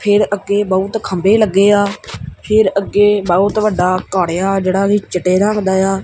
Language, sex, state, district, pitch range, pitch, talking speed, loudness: Punjabi, male, Punjab, Kapurthala, 190-205 Hz, 200 Hz, 170 wpm, -14 LUFS